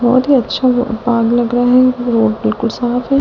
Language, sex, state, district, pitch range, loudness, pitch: Hindi, female, Delhi, New Delhi, 230-250 Hz, -13 LUFS, 245 Hz